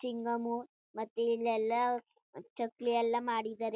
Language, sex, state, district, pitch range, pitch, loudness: Kannada, female, Karnataka, Chamarajanagar, 230-240 Hz, 235 Hz, -34 LUFS